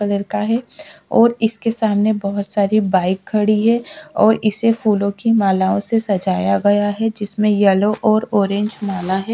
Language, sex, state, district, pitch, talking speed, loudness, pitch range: Hindi, female, Odisha, Sambalpur, 210 Hz, 165 wpm, -17 LUFS, 200-220 Hz